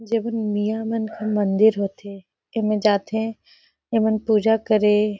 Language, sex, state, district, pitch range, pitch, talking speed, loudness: Surgujia, female, Chhattisgarh, Sarguja, 210-220 Hz, 215 Hz, 125 wpm, -21 LUFS